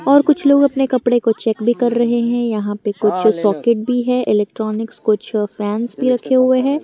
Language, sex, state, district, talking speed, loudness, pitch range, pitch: Hindi, female, Jharkhand, Garhwa, 210 wpm, -16 LUFS, 215-255 Hz, 235 Hz